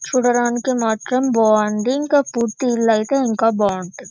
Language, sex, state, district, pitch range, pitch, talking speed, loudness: Telugu, female, Telangana, Karimnagar, 220-255 Hz, 235 Hz, 145 wpm, -18 LUFS